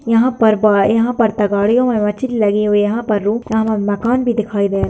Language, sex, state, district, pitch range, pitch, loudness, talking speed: Hindi, female, Bihar, Lakhisarai, 205-235 Hz, 220 Hz, -15 LUFS, 230 wpm